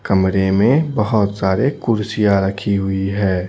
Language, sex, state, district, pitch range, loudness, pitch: Hindi, male, Bihar, Patna, 95-105 Hz, -17 LUFS, 100 Hz